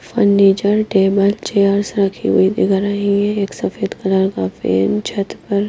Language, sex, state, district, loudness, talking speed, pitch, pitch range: Hindi, female, Himachal Pradesh, Shimla, -16 LUFS, 135 wpm, 200 Hz, 190-200 Hz